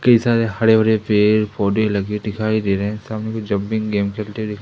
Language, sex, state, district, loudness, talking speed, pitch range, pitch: Hindi, male, Madhya Pradesh, Umaria, -18 LUFS, 210 wpm, 105-110 Hz, 110 Hz